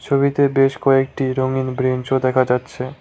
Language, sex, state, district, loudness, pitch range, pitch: Bengali, male, West Bengal, Cooch Behar, -18 LUFS, 130-135 Hz, 130 Hz